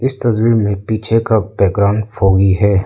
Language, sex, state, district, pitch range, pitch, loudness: Hindi, male, Arunachal Pradesh, Lower Dibang Valley, 100-115 Hz, 105 Hz, -14 LUFS